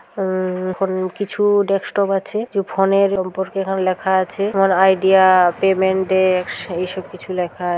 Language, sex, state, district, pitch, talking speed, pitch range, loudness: Bengali, female, West Bengal, Jhargram, 190 Hz, 125 wpm, 185-195 Hz, -18 LUFS